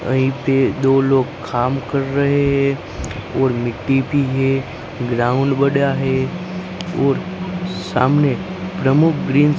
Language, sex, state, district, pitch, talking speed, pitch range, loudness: Hindi, male, Gujarat, Gandhinagar, 135 Hz, 120 wpm, 130-140 Hz, -18 LUFS